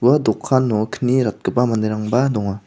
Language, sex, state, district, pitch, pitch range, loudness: Garo, male, Meghalaya, South Garo Hills, 115 Hz, 110-125 Hz, -19 LUFS